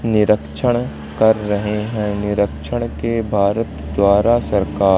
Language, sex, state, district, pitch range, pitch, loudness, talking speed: Hindi, male, Madhya Pradesh, Katni, 100-110 Hz, 105 Hz, -18 LUFS, 110 wpm